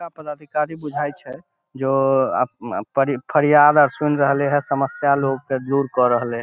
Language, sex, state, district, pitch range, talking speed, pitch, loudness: Maithili, male, Bihar, Samastipur, 135-150 Hz, 185 wpm, 140 Hz, -19 LUFS